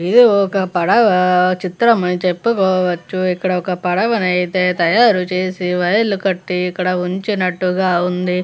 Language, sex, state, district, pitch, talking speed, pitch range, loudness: Telugu, female, Andhra Pradesh, Visakhapatnam, 185 Hz, 115 wpm, 180-190 Hz, -16 LUFS